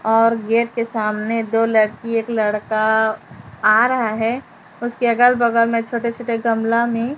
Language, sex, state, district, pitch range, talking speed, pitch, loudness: Hindi, female, Chhattisgarh, Raipur, 220-235 Hz, 160 wpm, 230 Hz, -18 LUFS